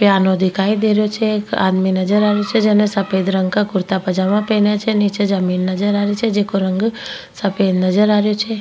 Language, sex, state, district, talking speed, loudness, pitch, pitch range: Rajasthani, female, Rajasthan, Nagaur, 225 wpm, -16 LUFS, 205 Hz, 190-210 Hz